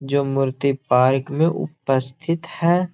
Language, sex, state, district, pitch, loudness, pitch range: Hindi, male, Bihar, Gaya, 140 Hz, -21 LUFS, 135-165 Hz